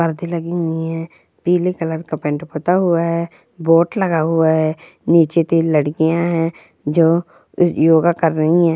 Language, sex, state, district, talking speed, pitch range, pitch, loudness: Hindi, female, Bihar, Jamui, 165 wpm, 160-170 Hz, 165 Hz, -17 LUFS